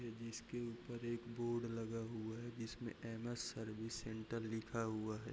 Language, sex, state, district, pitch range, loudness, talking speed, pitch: Hindi, male, Bihar, Bhagalpur, 115-120 Hz, -46 LUFS, 155 wpm, 115 Hz